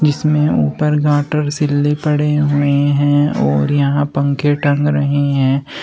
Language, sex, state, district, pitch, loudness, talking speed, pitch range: Hindi, male, Uttar Pradesh, Shamli, 145 Hz, -15 LUFS, 135 wpm, 140-150 Hz